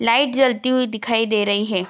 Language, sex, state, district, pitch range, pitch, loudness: Hindi, female, Bihar, Darbhanga, 205-255 Hz, 230 Hz, -18 LUFS